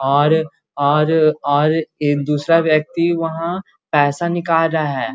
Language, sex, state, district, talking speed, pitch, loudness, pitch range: Magahi, male, Bihar, Gaya, 130 wpm, 155 Hz, -17 LUFS, 145-165 Hz